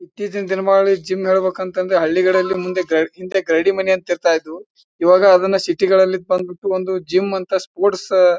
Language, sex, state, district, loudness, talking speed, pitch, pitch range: Kannada, male, Karnataka, Bijapur, -17 LUFS, 150 wpm, 185 Hz, 180-195 Hz